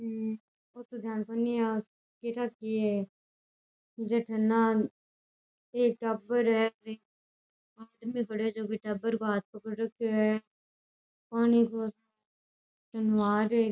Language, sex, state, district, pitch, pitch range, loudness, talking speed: Rajasthani, female, Rajasthan, Churu, 225 Hz, 215-230 Hz, -31 LUFS, 115 wpm